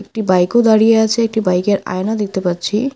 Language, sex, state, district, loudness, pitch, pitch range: Bengali, female, West Bengal, Alipurduar, -15 LUFS, 210 Hz, 185-220 Hz